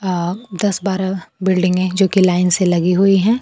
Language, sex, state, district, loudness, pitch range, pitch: Hindi, female, Bihar, Kaimur, -16 LUFS, 180-195 Hz, 190 Hz